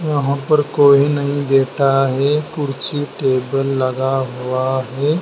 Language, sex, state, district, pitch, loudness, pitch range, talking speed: Hindi, male, Madhya Pradesh, Dhar, 140 Hz, -17 LUFS, 130-145 Hz, 140 wpm